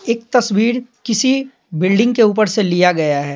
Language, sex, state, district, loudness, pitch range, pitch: Hindi, male, Bihar, Patna, -15 LUFS, 185-245 Hz, 225 Hz